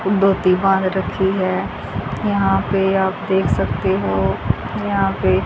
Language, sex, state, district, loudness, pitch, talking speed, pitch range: Hindi, female, Haryana, Jhajjar, -18 LUFS, 190 Hz, 130 wpm, 185-195 Hz